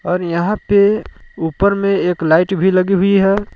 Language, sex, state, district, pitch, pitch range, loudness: Hindi, male, Jharkhand, Palamu, 190 Hz, 180-200 Hz, -15 LUFS